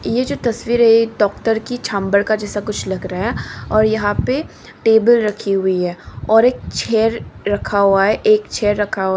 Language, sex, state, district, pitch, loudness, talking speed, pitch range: Hindi, female, Nagaland, Dimapur, 215 Hz, -17 LUFS, 205 wpm, 200-230 Hz